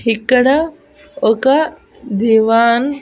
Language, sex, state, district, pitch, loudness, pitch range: Telugu, female, Andhra Pradesh, Annamaya, 250 Hz, -14 LUFS, 225-280 Hz